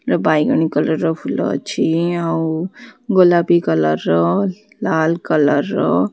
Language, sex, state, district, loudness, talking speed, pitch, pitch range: Odia, female, Odisha, Khordha, -17 LUFS, 110 wpm, 165 Hz, 155-180 Hz